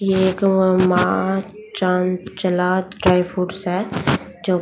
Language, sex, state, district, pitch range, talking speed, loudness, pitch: Hindi, female, Haryana, Jhajjar, 180-190 Hz, 130 wpm, -19 LUFS, 185 Hz